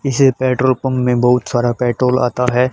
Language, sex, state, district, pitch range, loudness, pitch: Hindi, male, Haryana, Charkhi Dadri, 125-130 Hz, -15 LUFS, 125 Hz